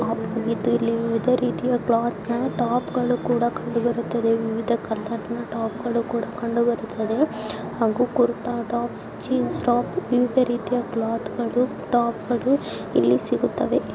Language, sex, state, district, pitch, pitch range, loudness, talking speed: Kannada, male, Karnataka, Bijapur, 235 Hz, 225-245 Hz, -23 LUFS, 110 wpm